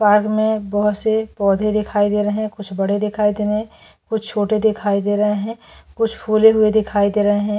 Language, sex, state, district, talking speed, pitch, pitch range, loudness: Hindi, female, Maharashtra, Chandrapur, 220 wpm, 210 Hz, 205-215 Hz, -18 LUFS